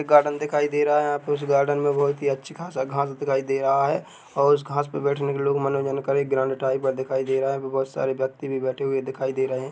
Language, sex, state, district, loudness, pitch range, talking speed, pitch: Hindi, male, Chhattisgarh, Bilaspur, -24 LUFS, 135-145 Hz, 290 wpm, 140 Hz